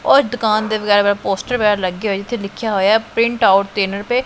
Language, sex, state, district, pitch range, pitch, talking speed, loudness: Punjabi, female, Punjab, Pathankot, 200-230 Hz, 210 Hz, 195 wpm, -16 LUFS